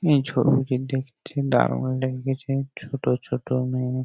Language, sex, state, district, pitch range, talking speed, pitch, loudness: Bengali, male, West Bengal, Jhargram, 130-135 Hz, 135 wpm, 130 Hz, -24 LUFS